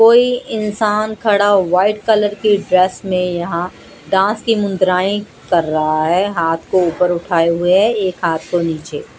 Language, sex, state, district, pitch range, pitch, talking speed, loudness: Hindi, female, Odisha, Malkangiri, 170-210 Hz, 185 Hz, 165 wpm, -15 LUFS